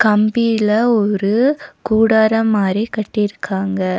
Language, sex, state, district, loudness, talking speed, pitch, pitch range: Tamil, female, Tamil Nadu, Nilgiris, -16 LUFS, 75 wpm, 215 Hz, 205-225 Hz